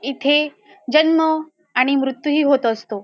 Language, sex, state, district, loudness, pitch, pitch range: Marathi, female, Maharashtra, Dhule, -18 LUFS, 275 Hz, 255-310 Hz